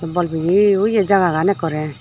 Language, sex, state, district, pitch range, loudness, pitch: Chakma, female, Tripura, Dhalai, 160-200 Hz, -16 LUFS, 180 Hz